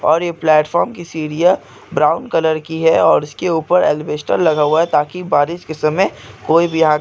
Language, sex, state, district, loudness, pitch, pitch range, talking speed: Hindi, male, Andhra Pradesh, Chittoor, -16 LUFS, 160 Hz, 155-170 Hz, 135 wpm